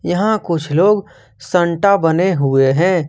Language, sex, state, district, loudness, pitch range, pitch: Hindi, male, Jharkhand, Ranchi, -15 LUFS, 145-190 Hz, 170 Hz